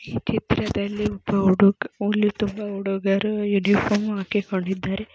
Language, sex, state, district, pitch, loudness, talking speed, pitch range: Kannada, female, Karnataka, Belgaum, 205 Hz, -23 LUFS, 105 wpm, 195-210 Hz